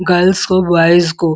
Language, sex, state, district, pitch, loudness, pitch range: Hindi, female, Uttar Pradesh, Muzaffarnagar, 175 Hz, -12 LUFS, 165-185 Hz